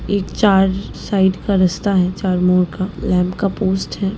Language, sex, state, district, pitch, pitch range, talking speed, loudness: Hindi, female, Bihar, Lakhisarai, 190 Hz, 180-195 Hz, 185 wpm, -17 LUFS